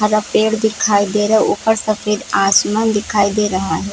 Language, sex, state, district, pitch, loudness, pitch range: Hindi, female, Jharkhand, Sahebganj, 210 Hz, -15 LUFS, 205-220 Hz